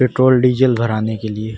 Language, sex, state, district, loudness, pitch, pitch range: Hindi, male, Uttar Pradesh, Varanasi, -15 LUFS, 115 Hz, 110-130 Hz